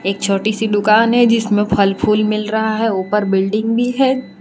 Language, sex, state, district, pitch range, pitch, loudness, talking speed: Hindi, female, Gujarat, Valsad, 200-225 Hz, 215 Hz, -15 LUFS, 190 wpm